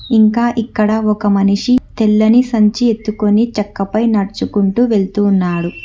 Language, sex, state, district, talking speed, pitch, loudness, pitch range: Telugu, female, Telangana, Hyderabad, 115 wpm, 215 Hz, -14 LUFS, 205-225 Hz